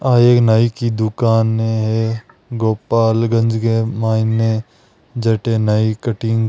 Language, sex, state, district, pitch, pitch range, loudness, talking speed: Marwari, male, Rajasthan, Nagaur, 115 Hz, 110-115 Hz, -16 LUFS, 110 wpm